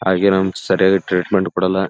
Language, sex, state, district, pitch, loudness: Kannada, male, Karnataka, Gulbarga, 95 Hz, -17 LUFS